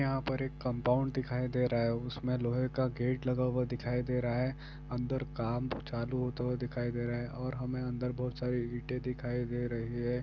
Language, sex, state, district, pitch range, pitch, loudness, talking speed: Hindi, male, Bihar, Saran, 120-130 Hz, 125 Hz, -35 LUFS, 215 wpm